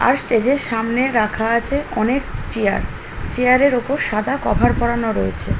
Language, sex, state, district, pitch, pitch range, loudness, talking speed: Bengali, female, West Bengal, Jhargram, 235 Hz, 225-265 Hz, -18 LUFS, 170 wpm